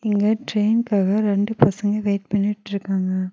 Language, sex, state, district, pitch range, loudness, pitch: Tamil, female, Tamil Nadu, Nilgiris, 200-210 Hz, -21 LUFS, 205 Hz